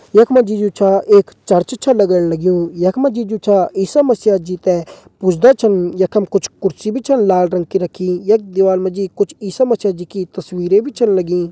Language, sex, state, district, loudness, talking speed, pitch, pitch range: Hindi, male, Uttarakhand, Uttarkashi, -15 LUFS, 210 wpm, 195 Hz, 180-215 Hz